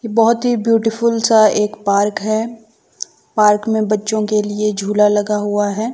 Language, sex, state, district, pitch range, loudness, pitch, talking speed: Hindi, female, Chandigarh, Chandigarh, 210-225 Hz, -16 LUFS, 215 Hz, 160 wpm